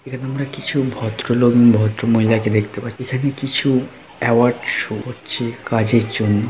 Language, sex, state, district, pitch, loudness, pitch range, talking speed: Bengali, male, West Bengal, Jhargram, 120 Hz, -18 LUFS, 110-130 Hz, 145 wpm